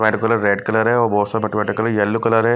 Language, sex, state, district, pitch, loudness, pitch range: Hindi, male, Himachal Pradesh, Shimla, 110 Hz, -18 LUFS, 105-115 Hz